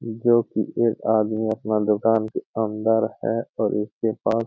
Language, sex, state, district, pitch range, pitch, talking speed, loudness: Hindi, male, Jharkhand, Jamtara, 110-115 Hz, 110 Hz, 175 wpm, -23 LUFS